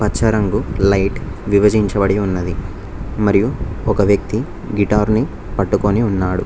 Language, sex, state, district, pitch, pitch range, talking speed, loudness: Telugu, male, Telangana, Mahabubabad, 100 Hz, 100-105 Hz, 110 wpm, -17 LUFS